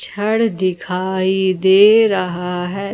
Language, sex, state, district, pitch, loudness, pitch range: Hindi, female, Jharkhand, Ranchi, 190 Hz, -16 LUFS, 185-205 Hz